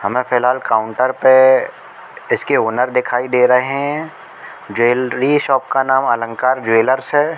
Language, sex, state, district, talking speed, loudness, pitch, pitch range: Hindi, male, Madhya Pradesh, Katni, 140 wpm, -15 LUFS, 130 Hz, 120-135 Hz